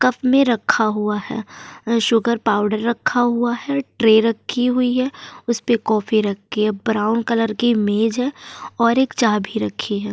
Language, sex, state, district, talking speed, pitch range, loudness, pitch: Hindi, female, Uttar Pradesh, Jyotiba Phule Nagar, 175 wpm, 215-245 Hz, -19 LUFS, 230 Hz